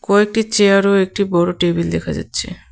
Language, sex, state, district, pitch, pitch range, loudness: Bengali, female, West Bengal, Cooch Behar, 195 Hz, 175-205 Hz, -16 LUFS